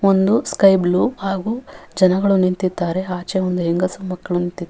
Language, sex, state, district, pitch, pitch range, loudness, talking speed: Kannada, female, Karnataka, Raichur, 185 Hz, 180-195 Hz, -18 LUFS, 155 wpm